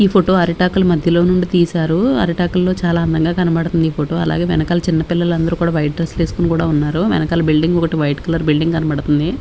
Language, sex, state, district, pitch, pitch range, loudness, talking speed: Telugu, female, Andhra Pradesh, Sri Satya Sai, 170 Hz, 160-175 Hz, -16 LUFS, 190 wpm